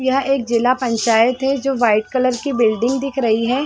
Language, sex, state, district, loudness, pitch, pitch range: Hindi, female, Chhattisgarh, Sarguja, -17 LUFS, 255 Hz, 235-270 Hz